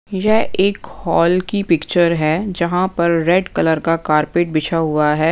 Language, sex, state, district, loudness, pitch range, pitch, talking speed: Hindi, female, Punjab, Pathankot, -16 LUFS, 160-185 Hz, 170 Hz, 170 wpm